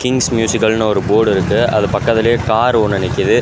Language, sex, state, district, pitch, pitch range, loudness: Tamil, male, Tamil Nadu, Kanyakumari, 115 Hz, 110-120 Hz, -14 LUFS